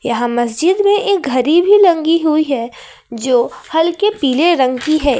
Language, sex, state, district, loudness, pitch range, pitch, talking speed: Hindi, female, Jharkhand, Ranchi, -14 LUFS, 255-350 Hz, 310 Hz, 175 wpm